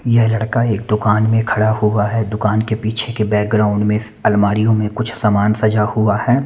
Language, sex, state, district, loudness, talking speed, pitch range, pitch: Hindi, male, Chandigarh, Chandigarh, -16 LUFS, 195 wpm, 105-110 Hz, 110 Hz